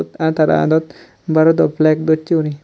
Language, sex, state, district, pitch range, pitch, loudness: Chakma, male, Tripura, Dhalai, 155-160 Hz, 160 Hz, -15 LUFS